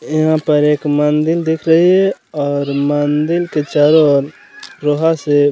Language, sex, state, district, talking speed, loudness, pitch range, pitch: Hindi, male, Bihar, Gaya, 165 wpm, -14 LUFS, 145-160 Hz, 150 Hz